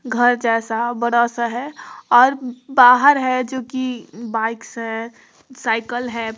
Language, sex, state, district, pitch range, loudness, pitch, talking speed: Hindi, female, Bihar, Gopalganj, 230-255 Hz, -18 LUFS, 240 Hz, 130 wpm